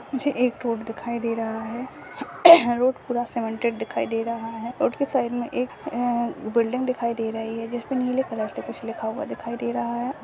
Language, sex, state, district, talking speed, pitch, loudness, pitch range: Hindi, female, Goa, North and South Goa, 210 wpm, 235 Hz, -24 LUFS, 230-250 Hz